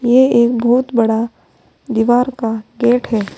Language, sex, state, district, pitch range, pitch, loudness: Hindi, female, Uttar Pradesh, Saharanpur, 225-245 Hz, 235 Hz, -15 LUFS